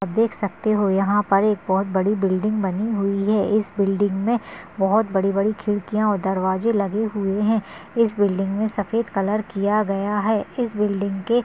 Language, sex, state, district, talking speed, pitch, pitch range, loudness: Hindi, female, Maharashtra, Dhule, 190 wpm, 205 Hz, 195-215 Hz, -21 LUFS